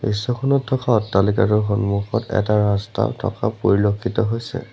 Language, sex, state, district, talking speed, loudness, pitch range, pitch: Assamese, male, Assam, Sonitpur, 115 wpm, -20 LUFS, 100-120 Hz, 110 Hz